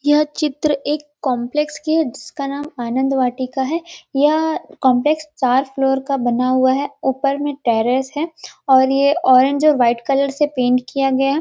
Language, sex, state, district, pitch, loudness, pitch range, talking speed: Hindi, female, Chhattisgarh, Rajnandgaon, 275 Hz, -18 LUFS, 260-300 Hz, 180 wpm